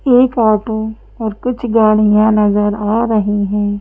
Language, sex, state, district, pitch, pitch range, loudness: Hindi, female, Madhya Pradesh, Bhopal, 215 Hz, 210-230 Hz, -14 LUFS